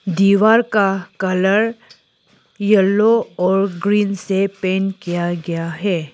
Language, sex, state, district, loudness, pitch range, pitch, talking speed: Hindi, female, Arunachal Pradesh, Lower Dibang Valley, -17 LUFS, 185-205 Hz, 195 Hz, 105 wpm